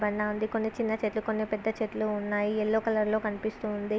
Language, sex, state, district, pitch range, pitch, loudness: Telugu, female, Andhra Pradesh, Visakhapatnam, 210-220 Hz, 215 Hz, -30 LUFS